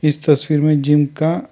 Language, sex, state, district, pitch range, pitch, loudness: Hindi, male, Karnataka, Bangalore, 150-155 Hz, 150 Hz, -16 LUFS